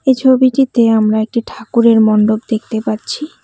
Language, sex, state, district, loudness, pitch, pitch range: Bengali, female, West Bengal, Cooch Behar, -13 LUFS, 230 Hz, 220-260 Hz